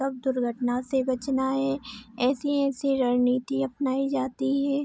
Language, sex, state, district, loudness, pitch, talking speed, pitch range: Hindi, female, Bihar, Araria, -26 LUFS, 265 Hz, 125 wpm, 250-275 Hz